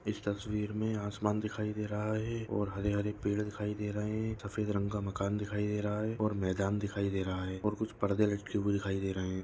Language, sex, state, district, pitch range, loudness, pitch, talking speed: Hindi, male, Maharashtra, Nagpur, 100-105 Hz, -35 LUFS, 105 Hz, 240 wpm